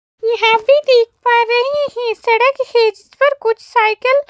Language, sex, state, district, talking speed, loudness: Hindi, female, Madhya Pradesh, Bhopal, 180 wpm, -14 LUFS